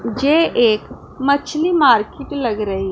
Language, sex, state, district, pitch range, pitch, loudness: Hindi, female, Punjab, Pathankot, 220-290 Hz, 270 Hz, -17 LUFS